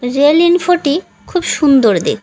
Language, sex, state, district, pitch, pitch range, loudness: Bengali, female, West Bengal, Cooch Behar, 295 Hz, 270-345 Hz, -12 LUFS